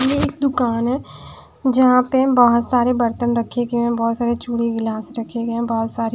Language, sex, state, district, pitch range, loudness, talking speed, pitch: Hindi, female, Punjab, Pathankot, 230-250 Hz, -18 LUFS, 185 wpm, 235 Hz